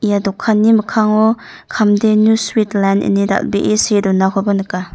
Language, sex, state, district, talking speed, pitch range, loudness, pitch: Garo, female, Meghalaya, North Garo Hills, 135 wpm, 195-220 Hz, -14 LUFS, 205 Hz